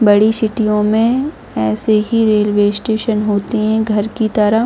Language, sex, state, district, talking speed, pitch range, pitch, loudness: Hindi, female, Jharkhand, Jamtara, 140 wpm, 210-220 Hz, 215 Hz, -15 LUFS